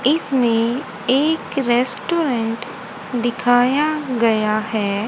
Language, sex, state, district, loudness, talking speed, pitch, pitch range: Hindi, female, Haryana, Rohtak, -18 LUFS, 70 wpm, 245 Hz, 225-275 Hz